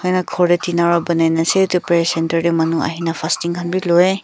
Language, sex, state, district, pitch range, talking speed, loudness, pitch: Nagamese, female, Nagaland, Kohima, 165-180 Hz, 255 wpm, -17 LUFS, 170 Hz